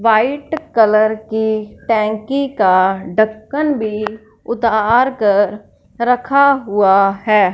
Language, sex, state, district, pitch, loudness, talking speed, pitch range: Hindi, female, Punjab, Fazilka, 220 Hz, -15 LUFS, 95 wpm, 210-245 Hz